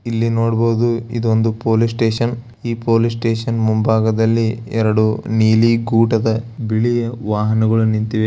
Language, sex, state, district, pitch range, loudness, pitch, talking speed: Kannada, male, Karnataka, Bellary, 110-115 Hz, -17 LUFS, 115 Hz, 95 wpm